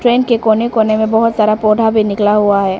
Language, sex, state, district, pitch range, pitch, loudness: Hindi, female, Arunachal Pradesh, Papum Pare, 210-225 Hz, 220 Hz, -12 LUFS